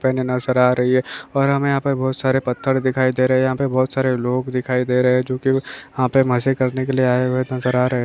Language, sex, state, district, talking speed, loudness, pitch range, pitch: Hindi, male, Maharashtra, Solapur, 290 wpm, -19 LUFS, 125-135 Hz, 130 Hz